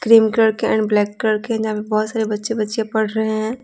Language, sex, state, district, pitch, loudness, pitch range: Hindi, female, Bihar, Patna, 220 Hz, -18 LUFS, 215-225 Hz